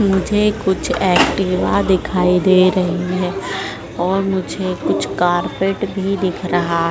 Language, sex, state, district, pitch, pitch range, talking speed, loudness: Hindi, female, Madhya Pradesh, Dhar, 185 Hz, 180-195 Hz, 120 wpm, -17 LUFS